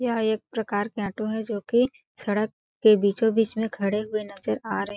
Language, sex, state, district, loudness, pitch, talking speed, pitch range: Hindi, female, Chhattisgarh, Balrampur, -25 LUFS, 215 Hz, 215 wpm, 205-225 Hz